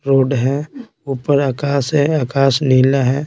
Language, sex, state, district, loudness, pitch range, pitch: Hindi, male, Bihar, Patna, -16 LUFS, 135-145 Hz, 140 Hz